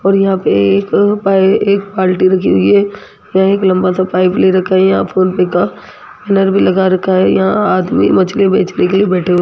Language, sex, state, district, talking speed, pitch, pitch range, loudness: Hindi, female, Rajasthan, Jaipur, 225 wpm, 190 Hz, 185-195 Hz, -12 LUFS